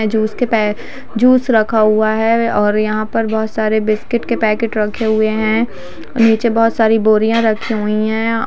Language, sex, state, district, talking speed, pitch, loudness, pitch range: Hindi, female, Bihar, Sitamarhi, 170 wpm, 220 Hz, -15 LUFS, 215-230 Hz